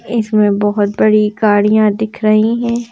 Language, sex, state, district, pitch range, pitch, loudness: Hindi, female, Madhya Pradesh, Bhopal, 210-225 Hz, 215 Hz, -13 LUFS